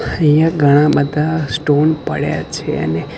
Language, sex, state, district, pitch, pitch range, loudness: Gujarati, male, Gujarat, Gandhinagar, 150 Hz, 145-155 Hz, -15 LUFS